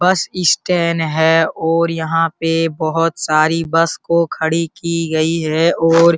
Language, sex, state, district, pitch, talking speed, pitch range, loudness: Hindi, male, Bihar, Araria, 165 Hz, 155 wpm, 160-170 Hz, -16 LUFS